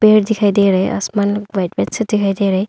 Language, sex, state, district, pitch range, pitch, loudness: Hindi, female, Arunachal Pradesh, Longding, 195-210 Hz, 205 Hz, -16 LUFS